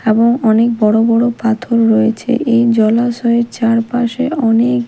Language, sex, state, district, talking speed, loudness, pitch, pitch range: Bengali, female, Odisha, Malkangiri, 125 wpm, -13 LUFS, 230 Hz, 225-240 Hz